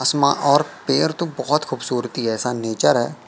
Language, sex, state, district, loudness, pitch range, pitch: Hindi, male, Madhya Pradesh, Katni, -20 LUFS, 120-150 Hz, 130 Hz